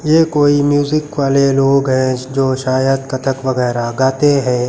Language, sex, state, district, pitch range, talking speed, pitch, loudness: Hindi, male, Uttar Pradesh, Lucknow, 130-145 Hz, 155 wpm, 135 Hz, -14 LUFS